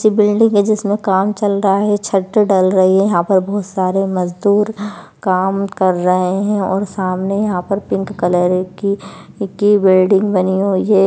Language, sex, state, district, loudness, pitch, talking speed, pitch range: Hindi, female, Bihar, Kishanganj, -15 LUFS, 195 Hz, 175 wpm, 185-205 Hz